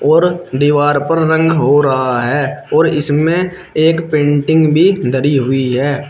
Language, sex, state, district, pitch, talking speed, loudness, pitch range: Hindi, male, Uttar Pradesh, Shamli, 145 Hz, 150 wpm, -13 LUFS, 140-165 Hz